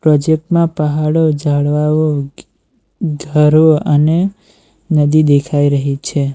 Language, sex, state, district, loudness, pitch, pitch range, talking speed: Gujarati, male, Gujarat, Valsad, -13 LUFS, 150 Hz, 145-160 Hz, 105 wpm